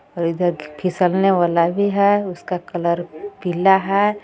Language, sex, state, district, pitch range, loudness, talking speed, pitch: Hindi, female, Jharkhand, Garhwa, 175-195 Hz, -19 LUFS, 155 wpm, 180 Hz